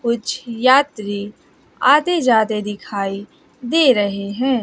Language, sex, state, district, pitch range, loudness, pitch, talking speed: Hindi, female, Bihar, West Champaran, 205-260 Hz, -17 LUFS, 230 Hz, 105 wpm